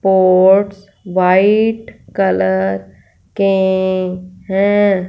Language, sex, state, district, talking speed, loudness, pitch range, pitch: Hindi, female, Punjab, Fazilka, 60 wpm, -14 LUFS, 180-195 Hz, 190 Hz